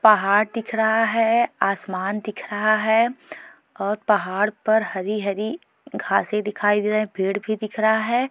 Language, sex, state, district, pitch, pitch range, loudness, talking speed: Hindi, female, Goa, North and South Goa, 215 Hz, 205-220 Hz, -21 LUFS, 165 wpm